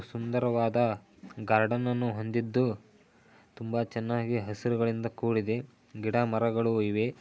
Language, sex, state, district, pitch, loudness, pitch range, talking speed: Kannada, male, Karnataka, Dharwad, 115 Hz, -30 LUFS, 110-120 Hz, 90 wpm